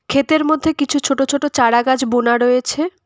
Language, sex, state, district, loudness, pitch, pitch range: Bengali, female, West Bengal, Cooch Behar, -16 LUFS, 275 Hz, 250-300 Hz